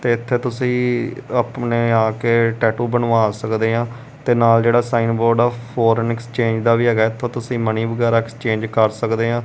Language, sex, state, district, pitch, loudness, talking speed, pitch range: Punjabi, male, Punjab, Kapurthala, 115 Hz, -18 LUFS, 190 wpm, 115-120 Hz